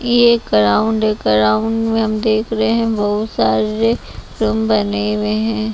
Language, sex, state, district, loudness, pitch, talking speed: Hindi, female, Bihar, West Champaran, -16 LUFS, 210 Hz, 155 wpm